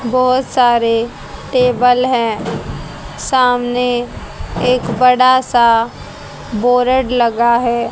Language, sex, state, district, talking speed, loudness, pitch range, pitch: Hindi, female, Haryana, Jhajjar, 85 wpm, -14 LUFS, 235-255 Hz, 245 Hz